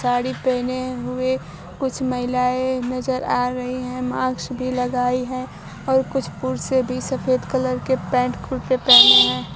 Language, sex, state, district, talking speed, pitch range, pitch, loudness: Hindi, male, Bihar, Kaimur, 150 wpm, 250-255 Hz, 255 Hz, -20 LUFS